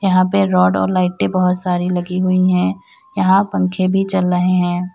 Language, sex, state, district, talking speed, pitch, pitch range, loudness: Hindi, female, Uttar Pradesh, Lalitpur, 195 wpm, 180 Hz, 175-185 Hz, -16 LUFS